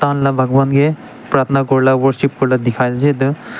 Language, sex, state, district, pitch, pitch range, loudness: Nagamese, male, Nagaland, Dimapur, 135 Hz, 130-140 Hz, -15 LUFS